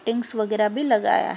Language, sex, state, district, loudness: Hindi, female, Uttar Pradesh, Varanasi, -21 LUFS